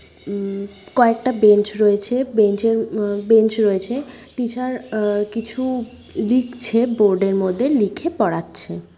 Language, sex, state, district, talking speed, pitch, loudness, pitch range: Bengali, female, West Bengal, Kolkata, 105 wpm, 220 Hz, -19 LUFS, 200-245 Hz